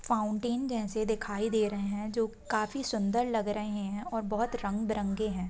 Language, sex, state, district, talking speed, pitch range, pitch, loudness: Hindi, male, Bihar, Gaya, 185 wpm, 210-225 Hz, 215 Hz, -32 LUFS